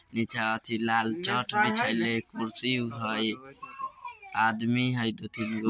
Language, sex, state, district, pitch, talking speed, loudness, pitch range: Bajjika, male, Bihar, Vaishali, 115 Hz, 135 wpm, -28 LUFS, 110-130 Hz